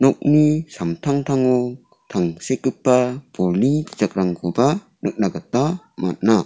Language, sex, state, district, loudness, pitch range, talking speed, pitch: Garo, male, Meghalaya, South Garo Hills, -20 LUFS, 110-145 Hz, 65 wpm, 130 Hz